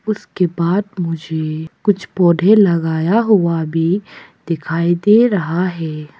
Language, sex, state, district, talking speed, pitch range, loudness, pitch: Hindi, female, Arunachal Pradesh, Papum Pare, 115 wpm, 165-200 Hz, -16 LUFS, 175 Hz